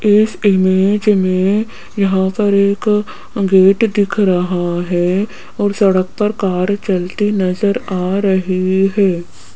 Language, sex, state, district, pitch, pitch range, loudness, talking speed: Hindi, female, Rajasthan, Jaipur, 195 Hz, 185-205 Hz, -15 LUFS, 120 wpm